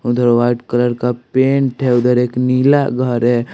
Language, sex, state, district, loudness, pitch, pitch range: Hindi, male, Bihar, West Champaran, -15 LUFS, 125 Hz, 120-130 Hz